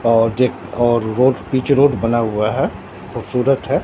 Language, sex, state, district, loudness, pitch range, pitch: Hindi, male, Bihar, Katihar, -17 LUFS, 110-130 Hz, 120 Hz